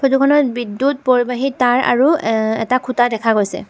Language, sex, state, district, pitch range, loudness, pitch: Assamese, female, Assam, Sonitpur, 225-270 Hz, -16 LUFS, 250 Hz